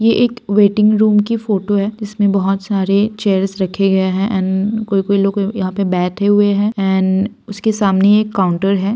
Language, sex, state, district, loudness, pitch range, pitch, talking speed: Hindi, female, Bihar, Saran, -15 LUFS, 195-210 Hz, 200 Hz, 185 wpm